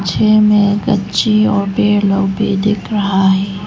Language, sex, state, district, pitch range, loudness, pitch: Hindi, female, Arunachal Pradesh, Lower Dibang Valley, 195-210 Hz, -13 LUFS, 205 Hz